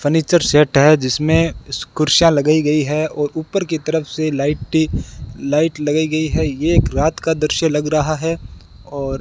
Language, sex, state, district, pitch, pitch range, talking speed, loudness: Hindi, male, Rajasthan, Bikaner, 155 Hz, 145-160 Hz, 180 wpm, -17 LUFS